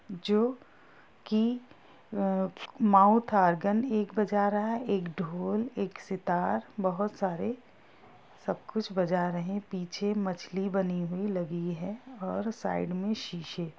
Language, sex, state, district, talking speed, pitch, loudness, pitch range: Hindi, female, Bihar, Gopalganj, 125 wpm, 200 Hz, -30 LUFS, 185-215 Hz